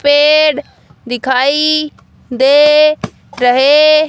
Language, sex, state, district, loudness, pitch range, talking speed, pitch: Hindi, female, Haryana, Jhajjar, -10 LUFS, 265-305 Hz, 75 wpm, 295 Hz